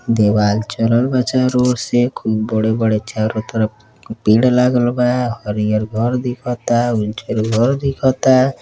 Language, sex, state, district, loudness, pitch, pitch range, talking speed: Bhojpuri, male, Uttar Pradesh, Deoria, -16 LUFS, 115 Hz, 110-125 Hz, 140 wpm